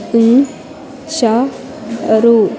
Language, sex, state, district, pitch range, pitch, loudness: Telugu, female, Andhra Pradesh, Sri Satya Sai, 230-280 Hz, 255 Hz, -13 LUFS